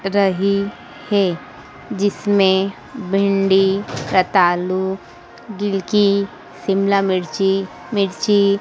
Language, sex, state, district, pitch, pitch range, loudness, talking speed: Hindi, female, Madhya Pradesh, Dhar, 195 Hz, 190-200 Hz, -18 LUFS, 65 wpm